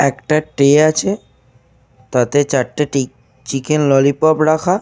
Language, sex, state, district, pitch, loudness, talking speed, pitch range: Bengali, male, Jharkhand, Jamtara, 140 Hz, -15 LUFS, 110 wpm, 130-155 Hz